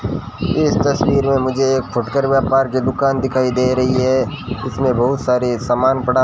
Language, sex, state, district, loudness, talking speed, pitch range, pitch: Hindi, male, Rajasthan, Bikaner, -17 LUFS, 180 wpm, 125-135 Hz, 130 Hz